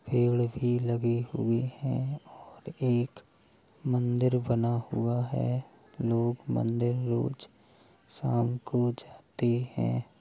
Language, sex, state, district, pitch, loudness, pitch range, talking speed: Hindi, male, Uttar Pradesh, Hamirpur, 120 Hz, -30 LUFS, 120-125 Hz, 105 wpm